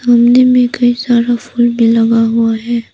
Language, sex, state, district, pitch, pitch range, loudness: Hindi, female, Arunachal Pradesh, Papum Pare, 240 Hz, 230-245 Hz, -11 LUFS